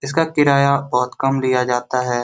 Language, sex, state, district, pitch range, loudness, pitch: Hindi, male, Bihar, Saran, 125-140 Hz, -18 LUFS, 135 Hz